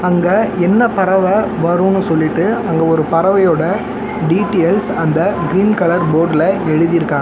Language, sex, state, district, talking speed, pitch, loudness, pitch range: Tamil, male, Tamil Nadu, Chennai, 115 wpm, 175 Hz, -14 LUFS, 165-195 Hz